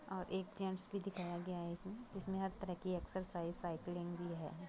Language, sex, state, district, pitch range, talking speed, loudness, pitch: Hindi, female, Uttar Pradesh, Budaun, 175-190 Hz, 190 wpm, -44 LUFS, 185 Hz